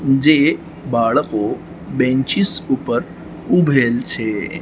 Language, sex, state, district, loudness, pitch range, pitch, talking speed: Gujarati, male, Gujarat, Gandhinagar, -17 LUFS, 125-155 Hz, 135 Hz, 80 wpm